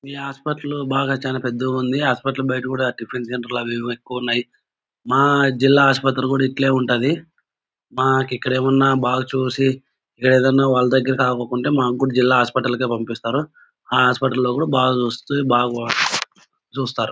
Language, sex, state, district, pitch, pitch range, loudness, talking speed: Telugu, male, Andhra Pradesh, Anantapur, 130 Hz, 125-135 Hz, -19 LUFS, 155 wpm